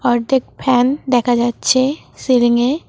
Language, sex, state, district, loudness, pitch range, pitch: Bengali, female, West Bengal, Cooch Behar, -15 LUFS, 240-265 Hz, 250 Hz